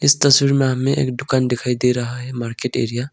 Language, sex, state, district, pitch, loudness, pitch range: Hindi, male, Arunachal Pradesh, Longding, 125 Hz, -18 LUFS, 125-135 Hz